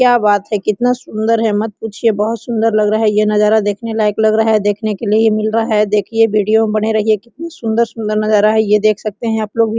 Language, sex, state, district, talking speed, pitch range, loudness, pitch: Hindi, female, Jharkhand, Sahebganj, 265 wpm, 210-225 Hz, -14 LUFS, 215 Hz